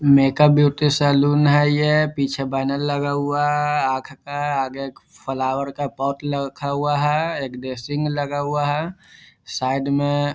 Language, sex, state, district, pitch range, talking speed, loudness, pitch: Hindi, male, Bihar, Vaishali, 135-145 Hz, 150 wpm, -20 LUFS, 145 Hz